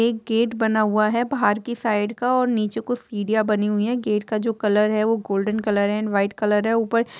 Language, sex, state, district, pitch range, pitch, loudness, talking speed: Hindi, female, Jharkhand, Jamtara, 210-230 Hz, 215 Hz, -21 LUFS, 250 wpm